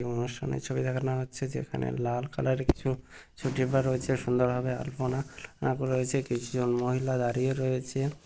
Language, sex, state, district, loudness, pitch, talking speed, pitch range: Bengali, male, West Bengal, Malda, -30 LUFS, 130 Hz, 140 wpm, 125-130 Hz